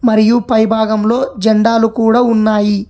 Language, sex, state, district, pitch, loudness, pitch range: Telugu, male, Telangana, Hyderabad, 225 Hz, -12 LUFS, 215-230 Hz